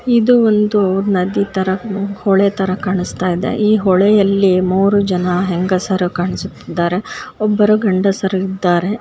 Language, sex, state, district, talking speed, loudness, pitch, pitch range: Kannada, female, Karnataka, Bijapur, 95 wpm, -15 LUFS, 195 Hz, 185-210 Hz